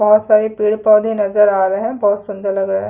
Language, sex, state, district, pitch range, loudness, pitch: Hindi, female, Chhattisgarh, Sukma, 200-215 Hz, -15 LUFS, 210 Hz